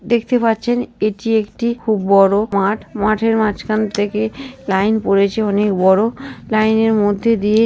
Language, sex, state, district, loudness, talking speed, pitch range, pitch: Bengali, female, West Bengal, North 24 Parganas, -16 LUFS, 140 wpm, 205-225 Hz, 215 Hz